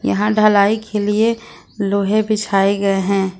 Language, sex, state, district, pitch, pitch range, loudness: Hindi, female, Jharkhand, Ranchi, 205 Hz, 200-215 Hz, -16 LUFS